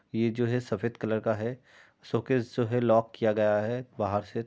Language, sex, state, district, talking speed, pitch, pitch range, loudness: Hindi, male, Uttar Pradesh, Jyotiba Phule Nagar, 230 wpm, 115 Hz, 110-120 Hz, -29 LUFS